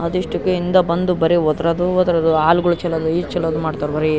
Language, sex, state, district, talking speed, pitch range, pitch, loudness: Kannada, male, Karnataka, Raichur, 170 wpm, 160-175 Hz, 170 Hz, -17 LUFS